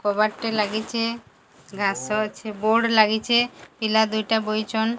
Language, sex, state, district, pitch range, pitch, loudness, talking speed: Odia, female, Odisha, Sambalpur, 215-225 Hz, 220 Hz, -22 LUFS, 95 wpm